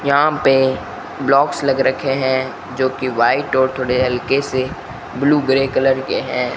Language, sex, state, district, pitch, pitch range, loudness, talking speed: Hindi, male, Rajasthan, Bikaner, 130 Hz, 130-135 Hz, -17 LUFS, 165 wpm